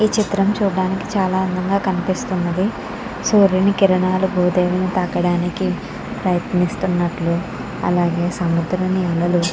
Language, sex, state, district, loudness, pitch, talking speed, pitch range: Telugu, female, Andhra Pradesh, Krishna, -19 LUFS, 185 Hz, 90 wpm, 175-190 Hz